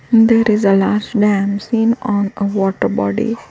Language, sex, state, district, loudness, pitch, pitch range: English, female, Gujarat, Valsad, -15 LUFS, 205 Hz, 195-225 Hz